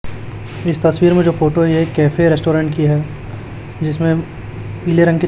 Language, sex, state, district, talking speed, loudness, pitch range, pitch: Hindi, male, Chhattisgarh, Raipur, 170 wpm, -15 LUFS, 120-165 Hz, 155 Hz